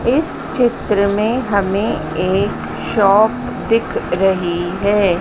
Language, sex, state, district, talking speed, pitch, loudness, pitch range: Hindi, female, Madhya Pradesh, Dhar, 105 wpm, 200 Hz, -17 LUFS, 190-220 Hz